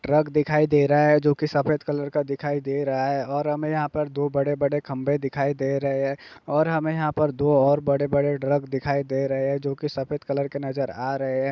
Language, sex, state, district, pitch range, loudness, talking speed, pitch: Hindi, male, Bihar, Gopalganj, 140-150 Hz, -24 LUFS, 245 wpm, 145 Hz